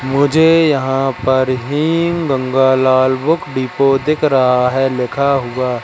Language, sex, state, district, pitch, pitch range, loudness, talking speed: Hindi, male, Madhya Pradesh, Katni, 135 Hz, 130-145 Hz, -14 LUFS, 125 wpm